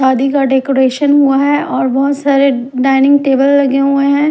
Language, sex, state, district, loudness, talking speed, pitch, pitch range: Hindi, female, Punjab, Kapurthala, -11 LUFS, 195 wpm, 275 Hz, 270-280 Hz